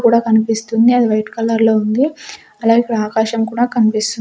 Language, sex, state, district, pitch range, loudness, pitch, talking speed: Telugu, female, Andhra Pradesh, Sri Satya Sai, 220-240 Hz, -15 LUFS, 225 Hz, 170 wpm